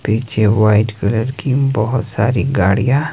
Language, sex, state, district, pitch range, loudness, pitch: Hindi, male, Himachal Pradesh, Shimla, 105-130 Hz, -15 LUFS, 115 Hz